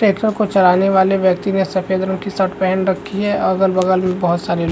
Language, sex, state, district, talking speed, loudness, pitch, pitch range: Hindi, male, Chhattisgarh, Rajnandgaon, 255 wpm, -16 LUFS, 190 Hz, 185-195 Hz